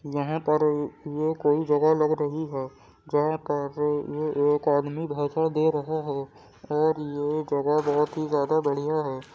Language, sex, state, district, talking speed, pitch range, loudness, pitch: Hindi, male, Uttar Pradesh, Muzaffarnagar, 160 wpm, 145-155 Hz, -26 LUFS, 150 Hz